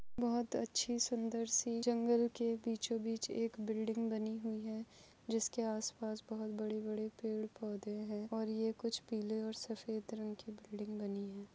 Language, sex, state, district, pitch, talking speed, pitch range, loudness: Hindi, female, Goa, North and South Goa, 220 Hz, 170 wpm, 215-230 Hz, -40 LUFS